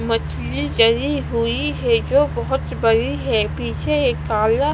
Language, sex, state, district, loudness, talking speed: Hindi, female, Punjab, Kapurthala, -19 LUFS, 140 wpm